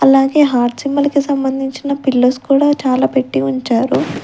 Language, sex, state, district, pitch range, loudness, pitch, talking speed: Telugu, female, Andhra Pradesh, Sri Satya Sai, 250-280 Hz, -14 LUFS, 270 Hz, 140 wpm